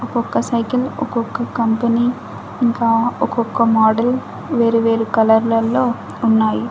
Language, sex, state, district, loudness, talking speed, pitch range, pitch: Telugu, female, Andhra Pradesh, Annamaya, -17 LUFS, 100 wpm, 225-240 Hz, 230 Hz